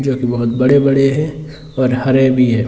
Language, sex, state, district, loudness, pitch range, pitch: Hindi, male, Bihar, Sitamarhi, -14 LUFS, 125-140 Hz, 135 Hz